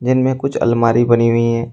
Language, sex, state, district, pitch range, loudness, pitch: Hindi, male, Uttar Pradesh, Shamli, 115-130 Hz, -15 LUFS, 120 Hz